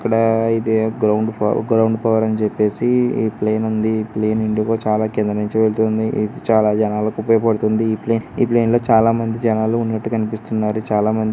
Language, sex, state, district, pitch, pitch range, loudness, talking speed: Telugu, male, Andhra Pradesh, Srikakulam, 110 Hz, 110-115 Hz, -18 LUFS, 165 wpm